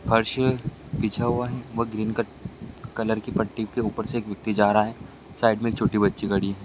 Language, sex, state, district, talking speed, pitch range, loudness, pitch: Hindi, male, Bihar, Lakhisarai, 235 wpm, 105-120 Hz, -25 LUFS, 115 Hz